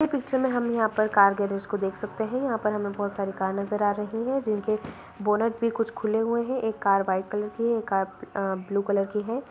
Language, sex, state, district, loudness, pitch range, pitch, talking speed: Hindi, female, Bihar, Madhepura, -26 LUFS, 200-230 Hz, 210 Hz, 265 wpm